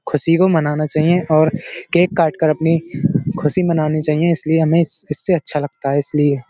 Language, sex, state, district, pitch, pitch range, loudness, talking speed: Hindi, male, Uttar Pradesh, Budaun, 160 Hz, 150-170 Hz, -16 LUFS, 165 wpm